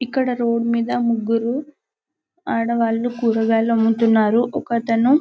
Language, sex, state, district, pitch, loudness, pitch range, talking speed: Telugu, male, Telangana, Karimnagar, 235 Hz, -19 LUFS, 230-245 Hz, 105 wpm